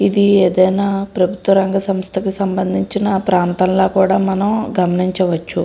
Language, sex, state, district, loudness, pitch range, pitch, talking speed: Telugu, female, Andhra Pradesh, Srikakulam, -15 LUFS, 185-195 Hz, 190 Hz, 105 wpm